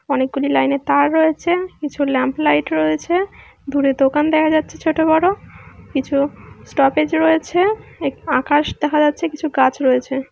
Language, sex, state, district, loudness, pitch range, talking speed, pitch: Bengali, female, West Bengal, Malda, -17 LUFS, 275-320 Hz, 140 wpm, 295 Hz